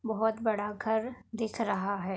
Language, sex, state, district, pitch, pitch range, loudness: Hindi, female, Uttar Pradesh, Budaun, 220 Hz, 205-225 Hz, -32 LUFS